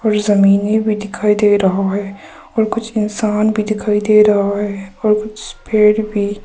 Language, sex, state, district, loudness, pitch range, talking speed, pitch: Hindi, female, Arunachal Pradesh, Papum Pare, -15 LUFS, 205-215 Hz, 165 wpm, 210 Hz